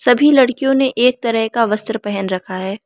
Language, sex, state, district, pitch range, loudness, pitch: Hindi, female, Arunachal Pradesh, Lower Dibang Valley, 205-250 Hz, -16 LUFS, 225 Hz